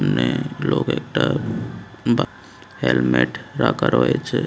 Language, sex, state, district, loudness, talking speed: Bengali, male, Tripura, West Tripura, -21 LUFS, 95 wpm